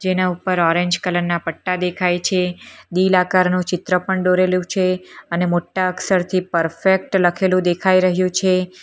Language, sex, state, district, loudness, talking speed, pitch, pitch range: Gujarati, female, Gujarat, Valsad, -18 LUFS, 150 wpm, 180 Hz, 175-185 Hz